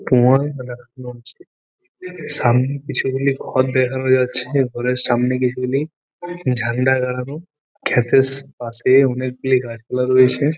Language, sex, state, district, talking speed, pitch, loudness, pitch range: Bengali, male, West Bengal, Purulia, 95 wpm, 130 Hz, -18 LUFS, 125-140 Hz